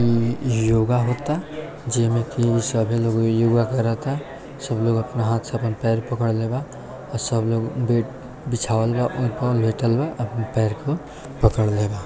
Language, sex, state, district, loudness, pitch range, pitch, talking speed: Maithili, male, Bihar, Samastipur, -22 LUFS, 115-125 Hz, 115 Hz, 155 wpm